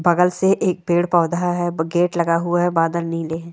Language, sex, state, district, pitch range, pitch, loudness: Hindi, female, Bihar, Saran, 170-175 Hz, 175 Hz, -19 LUFS